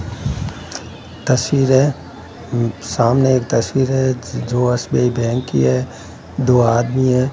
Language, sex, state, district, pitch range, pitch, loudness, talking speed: Hindi, male, Rajasthan, Bikaner, 115-130 Hz, 125 Hz, -17 LUFS, 115 wpm